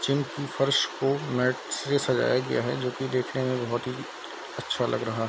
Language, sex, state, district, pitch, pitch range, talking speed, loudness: Hindi, male, Bihar, Darbhanga, 130 Hz, 125-140 Hz, 205 wpm, -27 LUFS